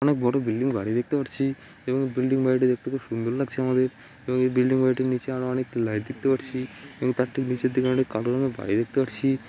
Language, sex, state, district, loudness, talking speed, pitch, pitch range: Bengali, male, West Bengal, Malda, -25 LUFS, 215 wpm, 130 Hz, 125-135 Hz